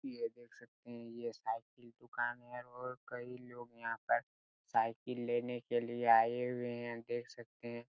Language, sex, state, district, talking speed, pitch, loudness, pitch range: Hindi, male, Chhattisgarh, Raigarh, 160 wpm, 120 Hz, -39 LUFS, 120-125 Hz